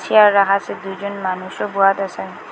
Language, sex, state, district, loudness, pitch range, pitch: Bengali, female, Assam, Hailakandi, -18 LUFS, 190-200 Hz, 195 Hz